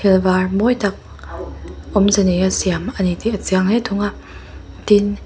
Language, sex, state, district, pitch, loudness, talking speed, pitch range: Mizo, female, Mizoram, Aizawl, 190 Hz, -17 LUFS, 170 wpm, 180-205 Hz